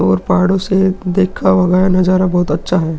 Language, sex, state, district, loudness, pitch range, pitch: Hindi, male, Uttar Pradesh, Hamirpur, -13 LUFS, 180-190 Hz, 185 Hz